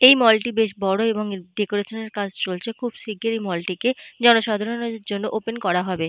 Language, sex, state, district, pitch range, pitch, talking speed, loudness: Bengali, female, Jharkhand, Jamtara, 195-230 Hz, 220 Hz, 215 wpm, -22 LUFS